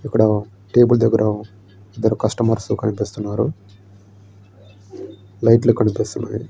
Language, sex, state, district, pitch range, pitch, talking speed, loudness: Telugu, male, Andhra Pradesh, Srikakulam, 100-115 Hz, 105 Hz, 65 wpm, -18 LUFS